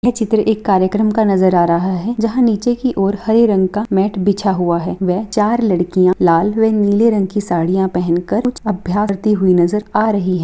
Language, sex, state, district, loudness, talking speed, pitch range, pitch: Hindi, female, Bihar, Samastipur, -15 LUFS, 220 wpm, 185-220 Hz, 200 Hz